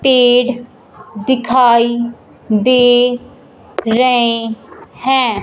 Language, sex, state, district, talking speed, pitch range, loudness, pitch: Hindi, male, Punjab, Fazilka, 55 wpm, 235-255 Hz, -13 LUFS, 245 Hz